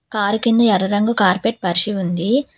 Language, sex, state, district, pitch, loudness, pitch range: Telugu, female, Telangana, Hyderabad, 205 Hz, -17 LUFS, 190-230 Hz